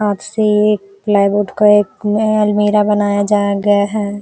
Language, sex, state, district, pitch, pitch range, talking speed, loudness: Hindi, female, Uttar Pradesh, Jalaun, 205 Hz, 205-210 Hz, 170 wpm, -14 LUFS